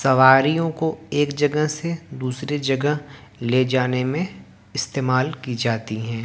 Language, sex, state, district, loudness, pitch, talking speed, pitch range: Hindi, male, Haryana, Jhajjar, -21 LUFS, 135 Hz, 135 wpm, 125-150 Hz